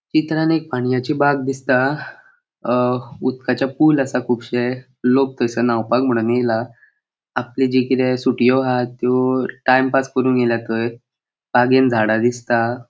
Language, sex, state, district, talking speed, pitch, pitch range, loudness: Konkani, male, Goa, North and South Goa, 130 wpm, 125 Hz, 120-135 Hz, -18 LUFS